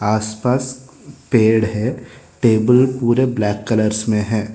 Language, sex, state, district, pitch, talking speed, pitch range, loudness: Hindi, male, Telangana, Hyderabad, 110 Hz, 120 wpm, 110-125 Hz, -17 LUFS